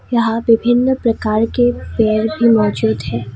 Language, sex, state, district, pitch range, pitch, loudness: Hindi, female, Assam, Kamrup Metropolitan, 215-235 Hz, 225 Hz, -15 LUFS